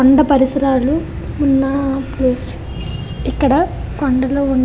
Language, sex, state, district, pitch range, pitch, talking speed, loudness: Telugu, female, Andhra Pradesh, Visakhapatnam, 265-280 Hz, 270 Hz, 105 wpm, -16 LUFS